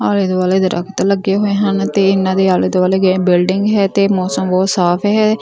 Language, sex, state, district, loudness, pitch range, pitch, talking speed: Punjabi, female, Punjab, Fazilka, -14 LUFS, 185-200 Hz, 190 Hz, 200 wpm